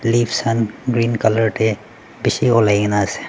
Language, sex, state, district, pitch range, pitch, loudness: Nagamese, male, Nagaland, Dimapur, 105-115 Hz, 115 Hz, -17 LUFS